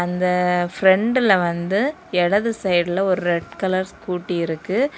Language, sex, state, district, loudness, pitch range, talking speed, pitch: Tamil, female, Tamil Nadu, Kanyakumari, -20 LUFS, 175-200 Hz, 120 wpm, 185 Hz